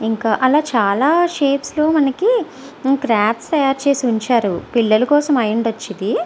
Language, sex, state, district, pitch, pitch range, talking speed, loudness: Telugu, female, Andhra Pradesh, Visakhapatnam, 260 Hz, 225-295 Hz, 145 wpm, -16 LUFS